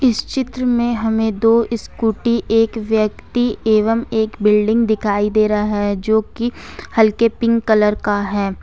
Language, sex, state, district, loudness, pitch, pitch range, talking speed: Hindi, female, Jharkhand, Ranchi, -17 LUFS, 220 Hz, 210-230 Hz, 155 wpm